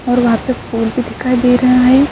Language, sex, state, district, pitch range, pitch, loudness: Urdu, female, Uttar Pradesh, Budaun, 245-255 Hz, 250 Hz, -13 LUFS